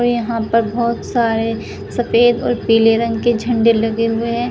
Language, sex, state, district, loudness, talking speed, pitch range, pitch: Hindi, female, Uttar Pradesh, Shamli, -16 LUFS, 175 wpm, 225-235 Hz, 230 Hz